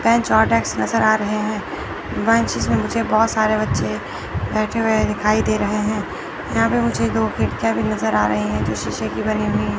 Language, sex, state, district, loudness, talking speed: Hindi, male, Chandigarh, Chandigarh, -19 LUFS, 200 wpm